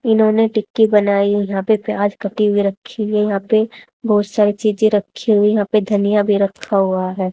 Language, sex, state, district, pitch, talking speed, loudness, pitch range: Hindi, female, Haryana, Jhajjar, 210 Hz, 205 wpm, -16 LUFS, 200-215 Hz